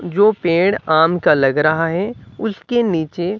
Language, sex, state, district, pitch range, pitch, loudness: Hindi, male, Bihar, Katihar, 160-210 Hz, 180 Hz, -17 LUFS